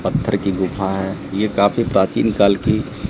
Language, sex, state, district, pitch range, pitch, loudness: Hindi, male, Bihar, Katihar, 95-110 Hz, 100 Hz, -18 LUFS